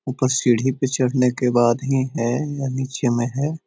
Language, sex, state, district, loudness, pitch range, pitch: Magahi, male, Bihar, Jahanabad, -20 LUFS, 125-135 Hz, 130 Hz